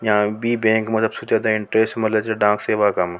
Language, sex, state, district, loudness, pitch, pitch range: Rajasthani, male, Rajasthan, Nagaur, -19 LUFS, 110 Hz, 105-110 Hz